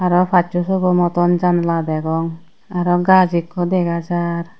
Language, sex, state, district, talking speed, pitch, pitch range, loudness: Chakma, female, Tripura, Unakoti, 145 wpm, 175 Hz, 170-180 Hz, -17 LUFS